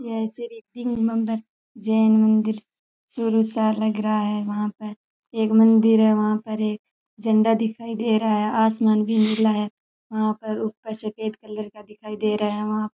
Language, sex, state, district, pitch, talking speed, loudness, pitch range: Rajasthani, male, Rajasthan, Churu, 220 Hz, 165 wpm, -22 LUFS, 215-225 Hz